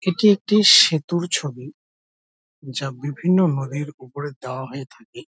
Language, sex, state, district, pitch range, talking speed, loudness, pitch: Bengali, male, West Bengal, Dakshin Dinajpur, 130-180 Hz, 135 wpm, -18 LUFS, 145 Hz